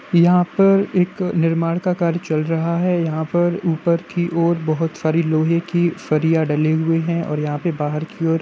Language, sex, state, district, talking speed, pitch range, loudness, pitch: Hindi, male, Uttar Pradesh, Jalaun, 205 wpm, 160-175 Hz, -19 LUFS, 165 Hz